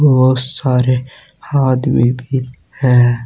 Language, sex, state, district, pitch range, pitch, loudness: Hindi, male, Uttar Pradesh, Saharanpur, 125-135 Hz, 130 Hz, -14 LUFS